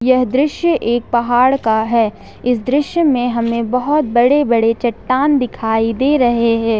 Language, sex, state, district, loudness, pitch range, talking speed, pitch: Hindi, female, Jharkhand, Ranchi, -15 LUFS, 230-270 Hz, 160 wpm, 245 Hz